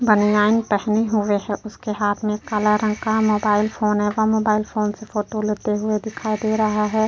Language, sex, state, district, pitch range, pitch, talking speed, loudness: Hindi, female, Uttar Pradesh, Jyotiba Phule Nagar, 210-215 Hz, 215 Hz, 205 wpm, -20 LUFS